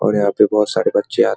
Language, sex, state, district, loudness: Hindi, male, Bihar, Muzaffarpur, -16 LUFS